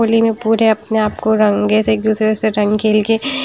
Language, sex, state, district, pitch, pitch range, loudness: Hindi, female, Punjab, Kapurthala, 220 Hz, 215-225 Hz, -15 LUFS